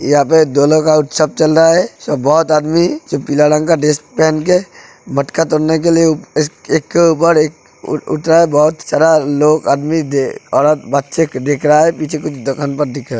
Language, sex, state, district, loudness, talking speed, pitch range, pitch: Hindi, male, Uttar Pradesh, Hamirpur, -13 LUFS, 225 wpm, 145-160 Hz, 155 Hz